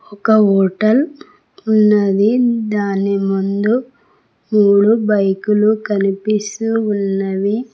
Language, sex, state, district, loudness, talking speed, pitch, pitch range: Telugu, female, Telangana, Mahabubabad, -15 LUFS, 70 wpm, 210 Hz, 200-220 Hz